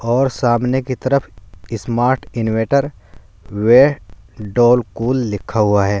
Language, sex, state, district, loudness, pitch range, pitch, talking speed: Hindi, male, Uttar Pradesh, Saharanpur, -16 LUFS, 100-130 Hz, 115 Hz, 130 wpm